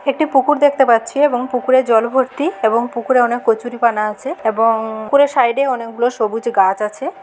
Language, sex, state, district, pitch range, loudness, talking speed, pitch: Bengali, female, West Bengal, Jhargram, 225-265 Hz, -16 LUFS, 165 wpm, 240 Hz